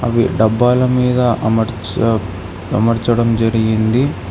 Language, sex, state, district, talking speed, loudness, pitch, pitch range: Telugu, male, Telangana, Hyderabad, 85 wpm, -15 LUFS, 115 Hz, 110-120 Hz